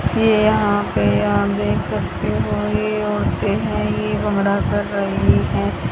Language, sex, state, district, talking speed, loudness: Hindi, male, Haryana, Rohtak, 150 wpm, -19 LUFS